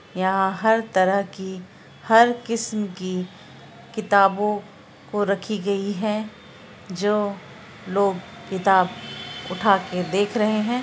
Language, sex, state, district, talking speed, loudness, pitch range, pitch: Hindi, female, Bihar, Araria, 110 wpm, -22 LUFS, 190-215 Hz, 200 Hz